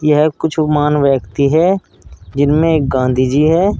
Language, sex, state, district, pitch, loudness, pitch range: Hindi, male, Uttar Pradesh, Saharanpur, 150 Hz, -14 LUFS, 130-155 Hz